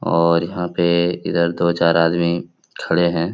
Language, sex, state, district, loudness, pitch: Hindi, male, Uttar Pradesh, Etah, -18 LUFS, 85 Hz